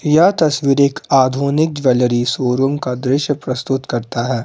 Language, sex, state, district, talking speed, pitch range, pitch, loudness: Hindi, male, Jharkhand, Palamu, 150 wpm, 125-145 Hz, 135 Hz, -16 LUFS